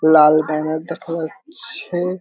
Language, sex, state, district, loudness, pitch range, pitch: Bengali, male, West Bengal, Kolkata, -19 LUFS, 155-180 Hz, 160 Hz